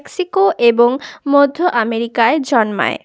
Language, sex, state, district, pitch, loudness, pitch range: Bengali, female, West Bengal, Jalpaiguri, 255 Hz, -14 LUFS, 235-305 Hz